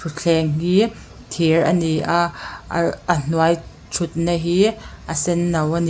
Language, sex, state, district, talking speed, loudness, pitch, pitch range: Mizo, female, Mizoram, Aizawl, 130 wpm, -19 LUFS, 170 Hz, 165-175 Hz